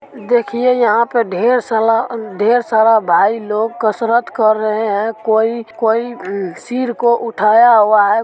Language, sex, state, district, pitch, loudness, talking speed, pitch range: Maithili, female, Bihar, Supaul, 225 Hz, -14 LUFS, 155 wpm, 215-235 Hz